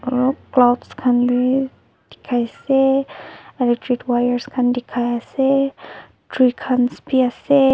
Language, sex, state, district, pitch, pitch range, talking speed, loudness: Nagamese, female, Nagaland, Dimapur, 255 Hz, 245-270 Hz, 110 wpm, -18 LUFS